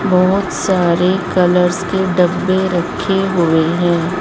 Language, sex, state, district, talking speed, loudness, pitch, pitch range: Hindi, female, Madhya Pradesh, Dhar, 115 wpm, -14 LUFS, 180 Hz, 175-190 Hz